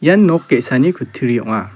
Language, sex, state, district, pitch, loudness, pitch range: Garo, male, Meghalaya, South Garo Hills, 125 Hz, -15 LUFS, 120-165 Hz